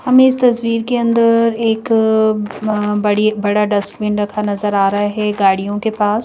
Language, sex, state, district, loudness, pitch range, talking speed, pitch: Hindi, female, Madhya Pradesh, Bhopal, -15 LUFS, 205-230 Hz, 165 wpm, 210 Hz